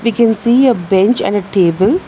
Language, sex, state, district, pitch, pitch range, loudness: English, female, Telangana, Hyderabad, 215 Hz, 195-235 Hz, -12 LUFS